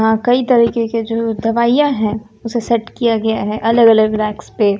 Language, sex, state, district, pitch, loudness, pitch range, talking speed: Hindi, female, Bihar, West Champaran, 225 Hz, -15 LUFS, 215-235 Hz, 200 wpm